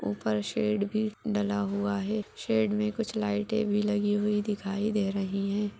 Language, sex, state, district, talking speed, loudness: Hindi, female, Maharashtra, Aurangabad, 175 wpm, -29 LUFS